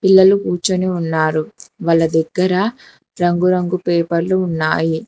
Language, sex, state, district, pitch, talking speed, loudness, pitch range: Telugu, female, Telangana, Hyderabad, 175 Hz, 95 wpm, -16 LUFS, 165-185 Hz